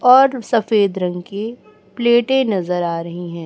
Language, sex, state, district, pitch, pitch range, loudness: Hindi, female, Chhattisgarh, Raipur, 210 Hz, 180-240 Hz, -17 LUFS